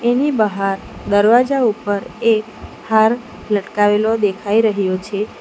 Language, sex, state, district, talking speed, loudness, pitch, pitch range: Gujarati, female, Gujarat, Valsad, 110 wpm, -17 LUFS, 215 Hz, 205-230 Hz